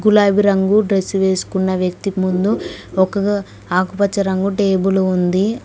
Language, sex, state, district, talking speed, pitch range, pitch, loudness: Telugu, female, Telangana, Mahabubabad, 115 wpm, 190-200 Hz, 195 Hz, -17 LUFS